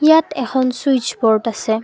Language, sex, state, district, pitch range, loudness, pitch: Assamese, female, Assam, Kamrup Metropolitan, 225-275 Hz, -17 LUFS, 255 Hz